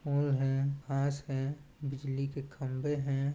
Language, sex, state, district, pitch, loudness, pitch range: Chhattisgarhi, male, Chhattisgarh, Balrampur, 140 Hz, -34 LUFS, 135-140 Hz